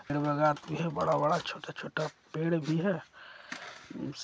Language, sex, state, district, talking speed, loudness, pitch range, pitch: Hindi, male, Bihar, Jahanabad, 70 wpm, -32 LUFS, 145-165 Hz, 155 Hz